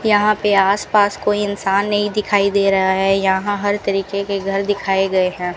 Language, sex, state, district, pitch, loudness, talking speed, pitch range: Hindi, female, Rajasthan, Bikaner, 200 Hz, -17 LUFS, 205 wpm, 195-205 Hz